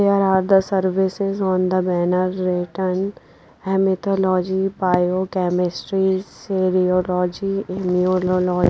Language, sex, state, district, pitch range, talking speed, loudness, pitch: English, female, Punjab, Pathankot, 180-190 Hz, 90 wpm, -20 LUFS, 185 Hz